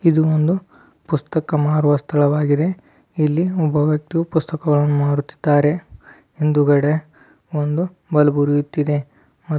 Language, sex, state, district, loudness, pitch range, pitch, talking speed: Kannada, male, Karnataka, Dharwad, -18 LUFS, 145-160 Hz, 150 Hz, 75 wpm